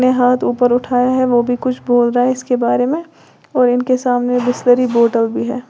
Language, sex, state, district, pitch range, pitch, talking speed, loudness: Hindi, female, Uttar Pradesh, Lalitpur, 245-255 Hz, 245 Hz, 220 wpm, -15 LUFS